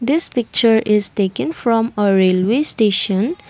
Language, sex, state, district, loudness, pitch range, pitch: English, female, Assam, Kamrup Metropolitan, -15 LUFS, 200-250 Hz, 225 Hz